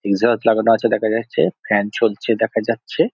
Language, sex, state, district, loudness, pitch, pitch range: Bengali, male, West Bengal, Jhargram, -18 LUFS, 115 Hz, 110-115 Hz